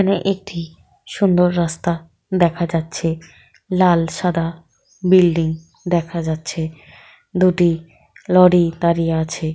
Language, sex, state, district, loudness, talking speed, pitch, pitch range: Bengali, female, West Bengal, Paschim Medinipur, -18 LUFS, 95 wpm, 170 Hz, 165-180 Hz